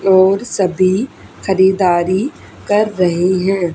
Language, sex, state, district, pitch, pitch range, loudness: Hindi, female, Haryana, Charkhi Dadri, 190 Hz, 185-200 Hz, -14 LUFS